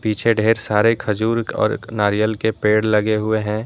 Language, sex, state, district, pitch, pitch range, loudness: Hindi, male, Jharkhand, Deoghar, 110 Hz, 105-110 Hz, -18 LUFS